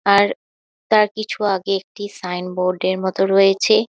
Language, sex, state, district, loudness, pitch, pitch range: Bengali, female, West Bengal, Malda, -18 LUFS, 195 Hz, 190-205 Hz